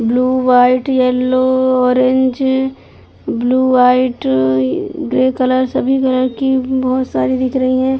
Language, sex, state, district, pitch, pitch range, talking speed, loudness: Hindi, female, Uttar Pradesh, Deoria, 255 Hz, 250-260 Hz, 120 wpm, -14 LUFS